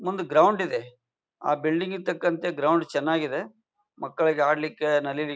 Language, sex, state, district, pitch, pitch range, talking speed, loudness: Kannada, male, Karnataka, Bijapur, 160 Hz, 145-180 Hz, 135 wpm, -25 LUFS